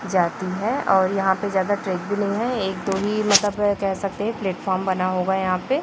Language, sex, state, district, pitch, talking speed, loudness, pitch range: Hindi, female, Chhattisgarh, Raipur, 195 Hz, 235 wpm, -22 LUFS, 190-205 Hz